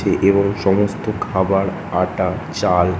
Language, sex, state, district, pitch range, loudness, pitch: Bengali, male, West Bengal, North 24 Parganas, 95-100 Hz, -18 LUFS, 95 Hz